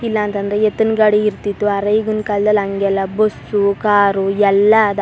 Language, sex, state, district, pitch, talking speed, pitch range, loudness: Kannada, female, Karnataka, Chamarajanagar, 205 Hz, 165 wpm, 200-215 Hz, -15 LUFS